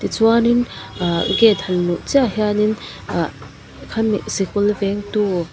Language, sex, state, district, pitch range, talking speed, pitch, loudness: Mizo, female, Mizoram, Aizawl, 195-225 Hz, 150 wpm, 210 Hz, -18 LUFS